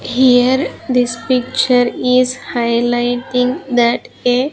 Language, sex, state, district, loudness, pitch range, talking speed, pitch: English, female, Andhra Pradesh, Sri Satya Sai, -15 LUFS, 245-255 Hz, 105 wpm, 250 Hz